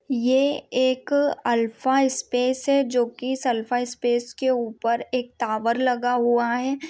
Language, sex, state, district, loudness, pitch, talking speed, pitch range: Hindi, female, Maharashtra, Pune, -23 LUFS, 250 Hz, 115 wpm, 240-260 Hz